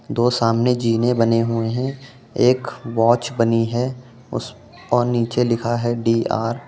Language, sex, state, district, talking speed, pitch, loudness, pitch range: Hindi, male, Uttar Pradesh, Jyotiba Phule Nagar, 155 wpm, 120 Hz, -20 LUFS, 115-125 Hz